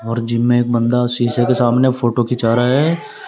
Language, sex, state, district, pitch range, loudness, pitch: Hindi, male, Uttar Pradesh, Shamli, 120-125 Hz, -15 LUFS, 120 Hz